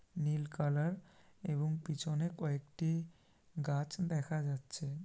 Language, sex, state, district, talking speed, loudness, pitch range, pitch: Bengali, male, West Bengal, Malda, 95 wpm, -38 LUFS, 145-165 Hz, 155 Hz